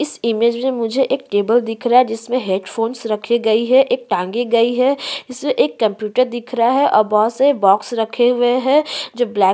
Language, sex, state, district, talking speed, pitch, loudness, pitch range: Hindi, female, Uttarakhand, Tehri Garhwal, 215 wpm, 240 Hz, -17 LUFS, 225-255 Hz